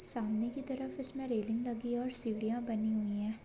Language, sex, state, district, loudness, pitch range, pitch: Hindi, female, Maharashtra, Aurangabad, -32 LUFS, 220-250 Hz, 235 Hz